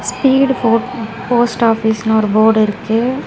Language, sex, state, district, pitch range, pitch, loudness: Tamil, female, Tamil Nadu, Chennai, 220-245 Hz, 230 Hz, -14 LUFS